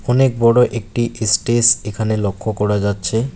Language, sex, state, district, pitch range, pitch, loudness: Bengali, male, West Bengal, Alipurduar, 105-120 Hz, 115 Hz, -16 LUFS